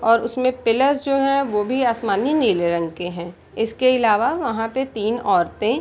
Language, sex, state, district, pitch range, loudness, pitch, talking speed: Hindi, female, Bihar, Gopalganj, 210-255 Hz, -20 LUFS, 230 Hz, 195 wpm